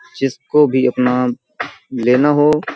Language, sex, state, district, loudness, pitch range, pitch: Hindi, male, Uttar Pradesh, Hamirpur, -15 LUFS, 125-150 Hz, 130 Hz